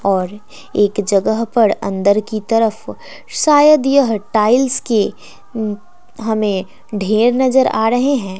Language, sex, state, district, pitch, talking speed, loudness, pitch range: Hindi, female, Bihar, West Champaran, 220 Hz, 130 wpm, -15 LUFS, 205-245 Hz